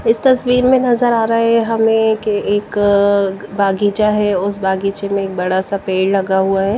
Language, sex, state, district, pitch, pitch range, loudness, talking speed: Hindi, female, Bihar, West Champaran, 205 Hz, 195-225 Hz, -15 LUFS, 195 wpm